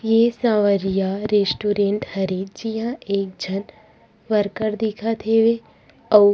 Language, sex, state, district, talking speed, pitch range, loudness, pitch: Chhattisgarhi, female, Chhattisgarh, Rajnandgaon, 115 wpm, 200-225 Hz, -21 LUFS, 210 Hz